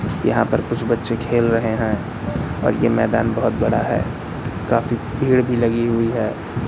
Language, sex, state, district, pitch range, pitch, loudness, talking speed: Hindi, male, Madhya Pradesh, Katni, 115-120 Hz, 115 Hz, -20 LUFS, 170 wpm